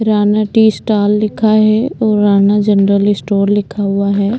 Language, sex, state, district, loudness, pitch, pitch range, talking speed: Hindi, female, Uttarakhand, Tehri Garhwal, -12 LUFS, 205 Hz, 200-215 Hz, 165 wpm